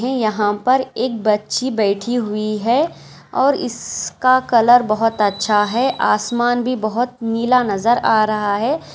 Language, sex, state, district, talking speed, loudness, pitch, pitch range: Hindi, female, Maharashtra, Aurangabad, 140 wpm, -17 LUFS, 230 Hz, 215-250 Hz